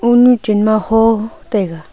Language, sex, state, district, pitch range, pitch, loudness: Wancho, female, Arunachal Pradesh, Longding, 210-240 Hz, 220 Hz, -13 LUFS